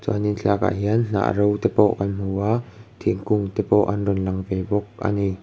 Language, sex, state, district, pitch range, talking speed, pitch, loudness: Mizo, male, Mizoram, Aizawl, 100-105 Hz, 220 wpm, 105 Hz, -22 LUFS